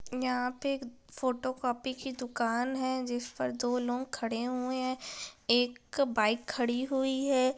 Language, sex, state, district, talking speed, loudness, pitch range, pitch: Hindi, female, Bihar, Jamui, 160 wpm, -32 LUFS, 245-260 Hz, 250 Hz